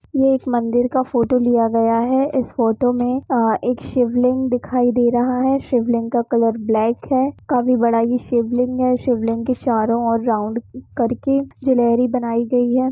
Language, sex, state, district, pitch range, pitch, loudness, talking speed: Hindi, female, Jharkhand, Jamtara, 235-255 Hz, 245 Hz, -18 LUFS, 175 wpm